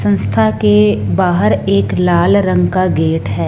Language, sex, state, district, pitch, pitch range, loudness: Hindi, female, Punjab, Fazilka, 100 Hz, 90-105 Hz, -13 LUFS